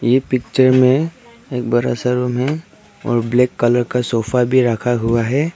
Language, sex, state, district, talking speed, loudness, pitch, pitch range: Hindi, male, Arunachal Pradesh, Papum Pare, 185 wpm, -17 LUFS, 125 Hz, 120-130 Hz